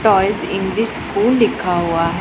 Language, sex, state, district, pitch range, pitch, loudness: Hindi, female, Punjab, Pathankot, 175-220 Hz, 195 Hz, -17 LUFS